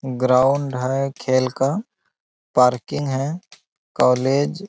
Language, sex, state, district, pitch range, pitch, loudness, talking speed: Hindi, male, Bihar, Bhagalpur, 130-140 Hz, 135 Hz, -20 LUFS, 115 wpm